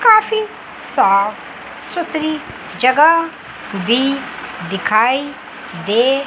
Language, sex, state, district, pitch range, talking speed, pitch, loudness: Hindi, female, Chandigarh, Chandigarh, 215-315 Hz, 65 wpm, 265 Hz, -16 LUFS